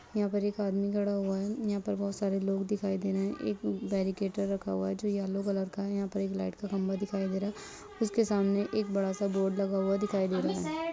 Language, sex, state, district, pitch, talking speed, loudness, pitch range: Hindi, female, Bihar, Saran, 200 Hz, 260 wpm, -32 LUFS, 195-205 Hz